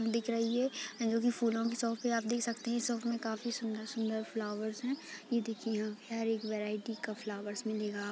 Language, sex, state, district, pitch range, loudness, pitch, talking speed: Hindi, female, Uttar Pradesh, Deoria, 215-235 Hz, -36 LUFS, 225 Hz, 230 wpm